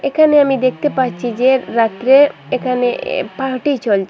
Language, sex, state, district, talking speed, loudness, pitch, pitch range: Bengali, female, Assam, Hailakandi, 145 wpm, -15 LUFS, 255 Hz, 235-275 Hz